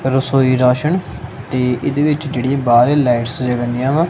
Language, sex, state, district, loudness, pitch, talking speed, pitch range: Punjabi, male, Punjab, Kapurthala, -15 LUFS, 130 Hz, 175 wpm, 125-145 Hz